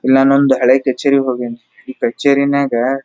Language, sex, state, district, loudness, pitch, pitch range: Kannada, male, Karnataka, Dharwad, -14 LUFS, 135 Hz, 130-140 Hz